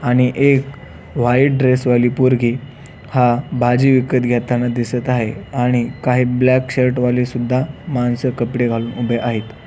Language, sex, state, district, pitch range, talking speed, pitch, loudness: Marathi, male, Maharashtra, Pune, 120-130 Hz, 145 wpm, 125 Hz, -16 LUFS